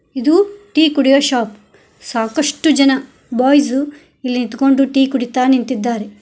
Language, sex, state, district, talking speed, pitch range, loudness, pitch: Kannada, female, Karnataka, Koppal, 115 wpm, 250-285 Hz, -15 LUFS, 270 Hz